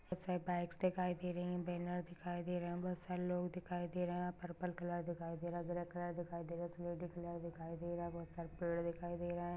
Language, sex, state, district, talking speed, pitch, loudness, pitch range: Hindi, male, Maharashtra, Dhule, 255 wpm, 175 Hz, -43 LUFS, 175-180 Hz